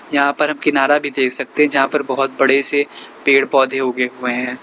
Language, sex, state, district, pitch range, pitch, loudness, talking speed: Hindi, male, Uttar Pradesh, Lalitpur, 130-145 Hz, 135 Hz, -16 LUFS, 235 wpm